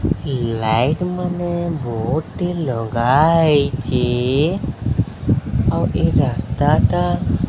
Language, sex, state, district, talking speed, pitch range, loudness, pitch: Odia, male, Odisha, Sambalpur, 70 wpm, 115-160 Hz, -18 LUFS, 135 Hz